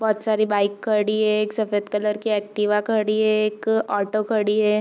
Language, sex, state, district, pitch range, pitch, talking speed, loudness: Hindi, female, Bihar, Gopalganj, 210-215 Hz, 215 Hz, 210 wpm, -21 LUFS